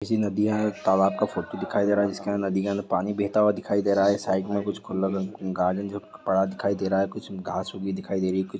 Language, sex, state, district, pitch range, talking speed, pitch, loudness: Hindi, male, Bihar, Madhepura, 95-100 Hz, 180 wpm, 100 Hz, -26 LUFS